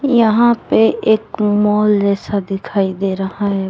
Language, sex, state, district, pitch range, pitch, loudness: Hindi, female, Jharkhand, Deoghar, 195-220 Hz, 210 Hz, -15 LUFS